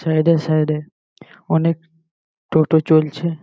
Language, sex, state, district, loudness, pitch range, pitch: Bengali, male, West Bengal, Malda, -18 LUFS, 155-165 Hz, 160 Hz